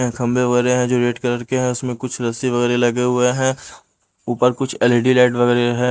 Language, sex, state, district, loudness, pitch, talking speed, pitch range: Hindi, male, Punjab, Pathankot, -18 LUFS, 125 Hz, 215 wpm, 120-125 Hz